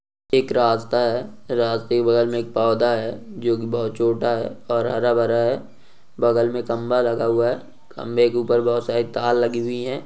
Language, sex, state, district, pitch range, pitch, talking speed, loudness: Hindi, male, Jharkhand, Jamtara, 115-120 Hz, 120 Hz, 205 wpm, -21 LUFS